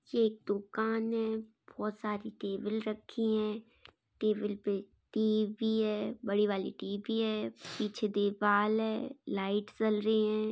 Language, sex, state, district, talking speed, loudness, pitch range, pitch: Hindi, female, Chhattisgarh, Kabirdham, 135 wpm, -33 LUFS, 205-220 Hz, 215 Hz